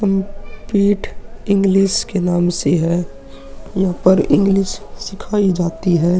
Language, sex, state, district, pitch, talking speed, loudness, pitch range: Hindi, male, Uttar Pradesh, Hamirpur, 190 Hz, 105 wpm, -16 LUFS, 175-200 Hz